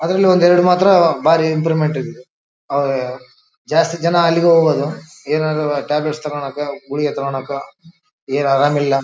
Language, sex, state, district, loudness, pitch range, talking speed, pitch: Kannada, male, Karnataka, Bellary, -16 LUFS, 140-170 Hz, 135 wpm, 155 Hz